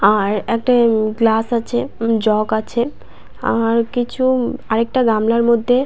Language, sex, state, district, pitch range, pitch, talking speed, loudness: Bengali, female, West Bengal, Purulia, 220-245 Hz, 230 Hz, 125 wpm, -17 LUFS